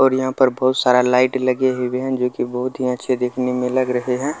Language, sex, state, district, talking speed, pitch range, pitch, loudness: Maithili, male, Bihar, Kishanganj, 260 wpm, 125-130 Hz, 125 Hz, -19 LUFS